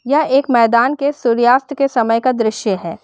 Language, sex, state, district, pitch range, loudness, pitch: Hindi, female, Uttar Pradesh, Shamli, 230-275 Hz, -15 LUFS, 245 Hz